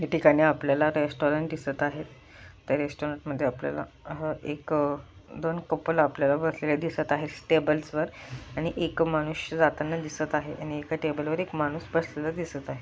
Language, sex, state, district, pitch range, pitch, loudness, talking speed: Marathi, female, Maharashtra, Pune, 145-160 Hz, 150 Hz, -28 LUFS, 160 wpm